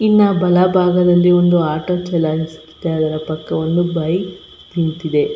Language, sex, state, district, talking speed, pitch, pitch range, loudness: Kannada, female, Karnataka, Belgaum, 125 wpm, 175 Hz, 160-180 Hz, -16 LUFS